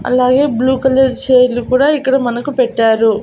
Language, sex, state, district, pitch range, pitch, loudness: Telugu, female, Andhra Pradesh, Annamaya, 240-265 Hz, 255 Hz, -13 LUFS